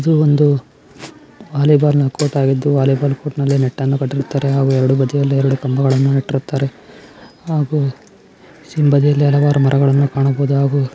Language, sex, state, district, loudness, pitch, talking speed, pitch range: Kannada, male, Karnataka, Bijapur, -15 LUFS, 140 Hz, 135 wpm, 135-145 Hz